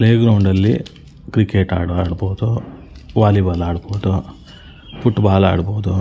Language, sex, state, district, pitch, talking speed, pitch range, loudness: Kannada, male, Karnataka, Shimoga, 95 Hz, 100 wpm, 90-105 Hz, -17 LUFS